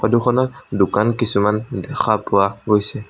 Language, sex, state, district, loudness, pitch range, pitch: Assamese, male, Assam, Sonitpur, -18 LUFS, 100-120 Hz, 105 Hz